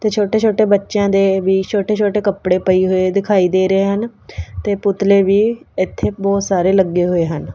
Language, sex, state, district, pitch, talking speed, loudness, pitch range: Punjabi, female, Punjab, Kapurthala, 195 Hz, 190 wpm, -15 LUFS, 185-205 Hz